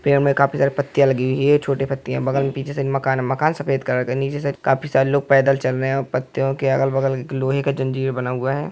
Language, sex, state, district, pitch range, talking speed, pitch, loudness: Hindi, male, Uttar Pradesh, Hamirpur, 135-140 Hz, 260 wpm, 135 Hz, -20 LUFS